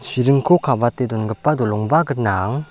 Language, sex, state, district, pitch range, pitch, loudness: Garo, male, Meghalaya, South Garo Hills, 110-145 Hz, 125 Hz, -18 LUFS